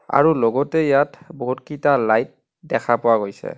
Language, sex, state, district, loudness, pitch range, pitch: Assamese, male, Assam, Kamrup Metropolitan, -19 LUFS, 115-145 Hz, 125 Hz